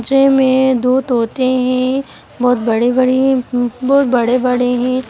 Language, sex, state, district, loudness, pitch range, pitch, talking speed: Hindi, female, Chhattisgarh, Kabirdham, -14 LUFS, 245-265 Hz, 255 Hz, 115 wpm